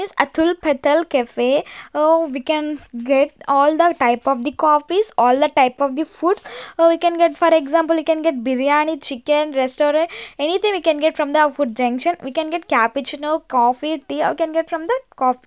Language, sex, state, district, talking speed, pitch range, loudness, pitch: English, female, Maharashtra, Gondia, 200 wpm, 275-330 Hz, -18 LUFS, 300 Hz